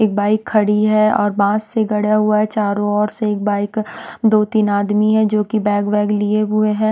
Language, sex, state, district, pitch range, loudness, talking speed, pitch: Hindi, female, Punjab, Pathankot, 205-215 Hz, -16 LUFS, 215 wpm, 210 Hz